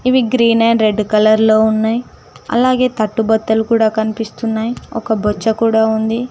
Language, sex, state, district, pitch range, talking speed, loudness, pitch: Telugu, female, Telangana, Mahabubabad, 220-230 Hz, 145 wpm, -14 LUFS, 225 Hz